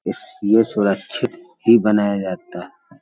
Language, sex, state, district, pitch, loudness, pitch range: Hindi, male, Uttar Pradesh, Hamirpur, 105 Hz, -19 LUFS, 100-110 Hz